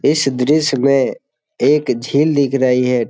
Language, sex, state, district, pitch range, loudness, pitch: Hindi, male, Bihar, Jamui, 125-145 Hz, -15 LUFS, 135 Hz